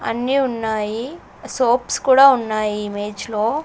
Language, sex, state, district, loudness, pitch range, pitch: Telugu, female, Andhra Pradesh, Sri Satya Sai, -18 LUFS, 215-260 Hz, 230 Hz